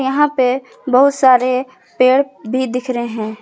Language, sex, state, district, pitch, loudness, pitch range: Hindi, female, Jharkhand, Garhwa, 255 Hz, -15 LUFS, 250-265 Hz